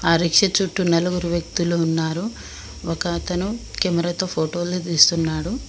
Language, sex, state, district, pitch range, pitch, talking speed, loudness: Telugu, female, Telangana, Mahabubabad, 165-185 Hz, 175 Hz, 135 wpm, -20 LUFS